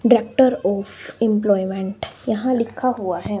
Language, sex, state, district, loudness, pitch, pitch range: Hindi, male, Himachal Pradesh, Shimla, -20 LUFS, 220 Hz, 195-245 Hz